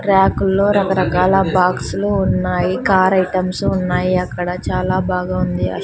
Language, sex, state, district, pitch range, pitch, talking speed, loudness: Telugu, female, Andhra Pradesh, Sri Satya Sai, 180-190 Hz, 185 Hz, 115 wpm, -16 LUFS